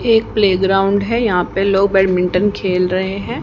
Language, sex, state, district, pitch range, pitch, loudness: Hindi, female, Haryana, Rohtak, 185-205 Hz, 195 Hz, -15 LUFS